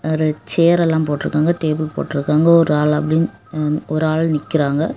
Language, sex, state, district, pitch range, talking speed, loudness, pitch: Tamil, female, Tamil Nadu, Kanyakumari, 150-160 Hz, 180 wpm, -17 LUFS, 155 Hz